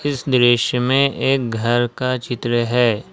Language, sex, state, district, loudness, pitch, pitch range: Hindi, male, Jharkhand, Ranchi, -18 LUFS, 125 Hz, 120-130 Hz